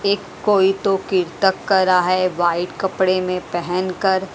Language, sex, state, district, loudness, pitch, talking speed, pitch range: Hindi, female, Haryana, Jhajjar, -19 LUFS, 185 Hz, 150 wpm, 180-195 Hz